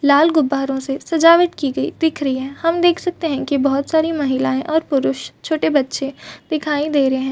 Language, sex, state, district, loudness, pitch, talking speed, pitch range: Hindi, female, Chhattisgarh, Bastar, -18 LUFS, 285 Hz, 215 wpm, 270-320 Hz